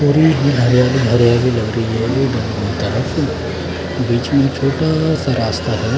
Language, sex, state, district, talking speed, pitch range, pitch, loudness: Hindi, male, Bihar, Katihar, 70 wpm, 110-135 Hz, 125 Hz, -16 LUFS